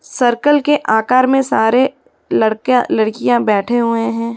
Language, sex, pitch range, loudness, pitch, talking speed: Hindi, female, 220-260 Hz, -14 LUFS, 240 Hz, 135 wpm